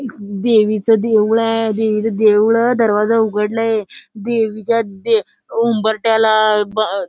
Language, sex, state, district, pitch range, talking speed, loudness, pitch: Marathi, female, Maharashtra, Solapur, 215-230 Hz, 120 wpm, -15 LUFS, 220 Hz